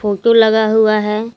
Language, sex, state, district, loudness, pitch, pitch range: Hindi, female, Jharkhand, Garhwa, -12 LUFS, 220 Hz, 210-225 Hz